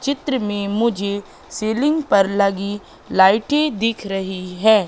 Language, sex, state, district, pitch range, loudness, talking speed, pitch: Hindi, female, Madhya Pradesh, Katni, 195-235 Hz, -19 LUFS, 125 wpm, 205 Hz